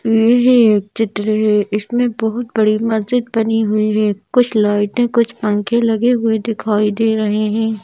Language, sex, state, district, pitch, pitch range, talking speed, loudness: Hindi, female, Madhya Pradesh, Bhopal, 220 Hz, 215-235 Hz, 160 wpm, -15 LUFS